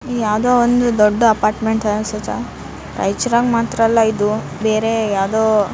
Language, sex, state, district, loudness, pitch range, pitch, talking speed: Kannada, female, Karnataka, Raichur, -16 LUFS, 210-230 Hz, 220 Hz, 125 wpm